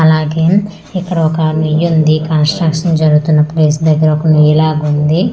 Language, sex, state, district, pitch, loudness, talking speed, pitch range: Telugu, female, Andhra Pradesh, Manyam, 155 Hz, -12 LUFS, 110 wpm, 155-165 Hz